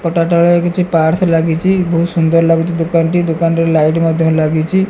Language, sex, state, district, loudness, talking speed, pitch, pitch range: Odia, female, Odisha, Malkangiri, -13 LUFS, 160 wpm, 165 Hz, 165-175 Hz